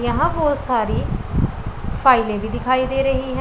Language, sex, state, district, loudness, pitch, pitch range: Hindi, female, Punjab, Pathankot, -20 LUFS, 260 Hz, 255-270 Hz